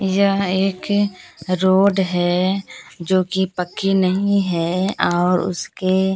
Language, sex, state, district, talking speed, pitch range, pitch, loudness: Hindi, female, Bihar, Katihar, 105 wpm, 180-195 Hz, 190 Hz, -19 LUFS